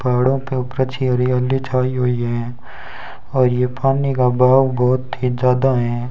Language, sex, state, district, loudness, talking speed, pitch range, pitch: Hindi, male, Rajasthan, Bikaner, -18 LUFS, 165 wpm, 125-130 Hz, 125 Hz